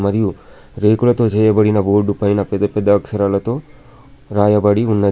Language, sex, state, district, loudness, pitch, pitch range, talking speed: Telugu, male, Telangana, Adilabad, -15 LUFS, 105 Hz, 100-110 Hz, 115 wpm